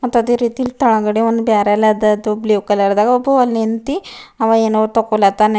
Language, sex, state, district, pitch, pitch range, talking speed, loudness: Kannada, female, Karnataka, Bidar, 225 Hz, 215-240 Hz, 180 wpm, -15 LUFS